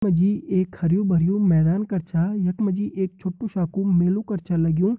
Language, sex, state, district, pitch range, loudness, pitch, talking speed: Hindi, male, Uttarakhand, Tehri Garhwal, 175-200 Hz, -22 LUFS, 185 Hz, 240 wpm